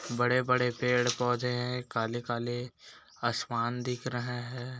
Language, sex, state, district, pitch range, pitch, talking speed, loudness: Hindi, male, Chhattisgarh, Bastar, 120-125 Hz, 125 Hz, 125 wpm, -31 LUFS